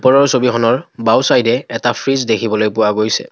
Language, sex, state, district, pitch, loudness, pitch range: Assamese, male, Assam, Kamrup Metropolitan, 115 Hz, -14 LUFS, 110-130 Hz